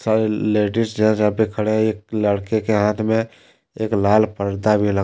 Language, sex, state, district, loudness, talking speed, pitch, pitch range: Hindi, male, Jharkhand, Deoghar, -19 LUFS, 180 wpm, 110 Hz, 105-110 Hz